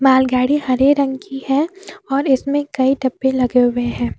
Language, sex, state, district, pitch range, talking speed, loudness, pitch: Hindi, female, Jharkhand, Deoghar, 255-280 Hz, 170 wpm, -17 LUFS, 265 Hz